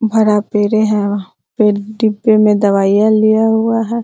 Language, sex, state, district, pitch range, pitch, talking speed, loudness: Hindi, female, Bihar, Araria, 205-220 Hz, 215 Hz, 165 wpm, -13 LUFS